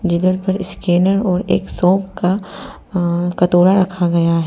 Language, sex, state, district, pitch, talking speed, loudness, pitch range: Hindi, female, Arunachal Pradesh, Papum Pare, 180 Hz, 160 wpm, -16 LUFS, 175-190 Hz